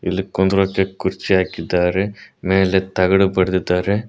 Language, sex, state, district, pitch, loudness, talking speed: Kannada, male, Karnataka, Koppal, 95 Hz, -18 LUFS, 105 wpm